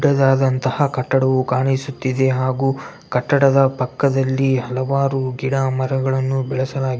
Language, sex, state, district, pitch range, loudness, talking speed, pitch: Kannada, male, Karnataka, Bellary, 130-135 Hz, -18 LUFS, 95 wpm, 135 Hz